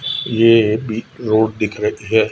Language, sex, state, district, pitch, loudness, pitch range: Hindi, female, Madhya Pradesh, Umaria, 110 Hz, -16 LUFS, 110-115 Hz